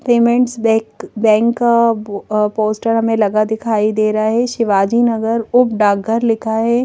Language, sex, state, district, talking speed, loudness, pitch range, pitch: Hindi, female, Madhya Pradesh, Bhopal, 150 wpm, -15 LUFS, 215-235 Hz, 225 Hz